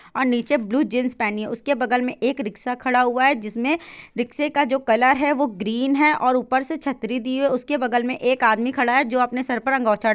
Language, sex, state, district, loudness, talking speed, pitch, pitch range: Hindi, female, Bihar, Saran, -21 LUFS, 255 wpm, 255 Hz, 240-275 Hz